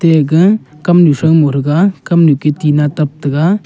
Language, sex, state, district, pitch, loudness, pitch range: Wancho, male, Arunachal Pradesh, Longding, 155 Hz, -11 LUFS, 150-170 Hz